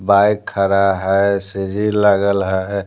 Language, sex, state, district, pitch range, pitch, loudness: Hindi, male, Bihar, Patna, 95-100 Hz, 100 Hz, -16 LUFS